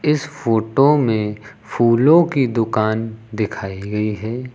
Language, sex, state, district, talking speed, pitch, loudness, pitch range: Hindi, female, Uttar Pradesh, Lucknow, 120 wpm, 115 Hz, -18 LUFS, 105-135 Hz